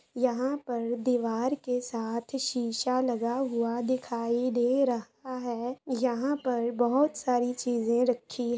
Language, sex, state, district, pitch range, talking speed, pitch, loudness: Hindi, female, West Bengal, Purulia, 235-255 Hz, 125 wpm, 245 Hz, -29 LUFS